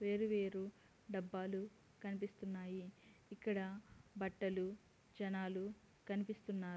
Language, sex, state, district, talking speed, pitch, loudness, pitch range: Telugu, female, Andhra Pradesh, Guntur, 70 wpm, 195 Hz, -45 LUFS, 190-205 Hz